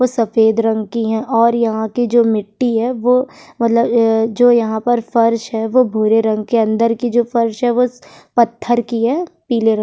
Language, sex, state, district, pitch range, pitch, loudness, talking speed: Hindi, female, Bihar, Kishanganj, 225-240 Hz, 230 Hz, -15 LUFS, 220 wpm